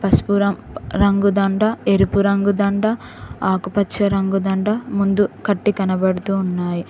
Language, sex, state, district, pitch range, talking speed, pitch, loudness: Telugu, female, Telangana, Mahabubabad, 195-205 Hz, 105 wpm, 200 Hz, -18 LUFS